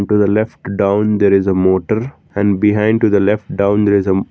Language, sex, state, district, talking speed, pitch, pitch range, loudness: English, male, Karnataka, Bangalore, 235 wpm, 100 Hz, 100-105 Hz, -14 LUFS